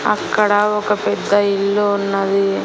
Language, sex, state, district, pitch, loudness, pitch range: Telugu, female, Andhra Pradesh, Annamaya, 205 Hz, -16 LUFS, 195-205 Hz